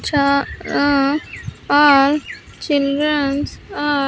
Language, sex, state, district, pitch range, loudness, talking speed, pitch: English, female, Andhra Pradesh, Sri Satya Sai, 280-295 Hz, -17 LUFS, 45 wpm, 285 Hz